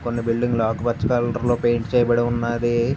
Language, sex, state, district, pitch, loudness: Telugu, male, Andhra Pradesh, Visakhapatnam, 120 Hz, -21 LUFS